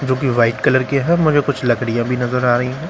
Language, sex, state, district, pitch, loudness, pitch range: Hindi, male, Bihar, Katihar, 125 Hz, -16 LUFS, 120-135 Hz